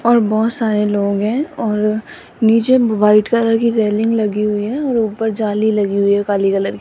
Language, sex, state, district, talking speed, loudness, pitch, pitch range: Hindi, female, Rajasthan, Jaipur, 205 wpm, -16 LUFS, 215 Hz, 210-230 Hz